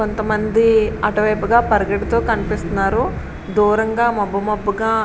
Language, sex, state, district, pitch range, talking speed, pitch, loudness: Telugu, female, Andhra Pradesh, Srikakulam, 210-225 Hz, 120 wpm, 215 Hz, -17 LUFS